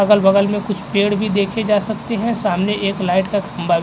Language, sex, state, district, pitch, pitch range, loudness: Hindi, male, Uttar Pradesh, Jalaun, 205 Hz, 195-210 Hz, -18 LUFS